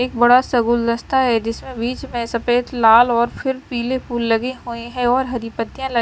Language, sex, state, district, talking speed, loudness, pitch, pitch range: Hindi, female, Chandigarh, Chandigarh, 210 wpm, -18 LUFS, 240 Hz, 235-255 Hz